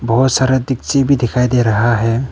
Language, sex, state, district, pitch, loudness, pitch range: Hindi, male, Arunachal Pradesh, Papum Pare, 125 Hz, -14 LUFS, 120-130 Hz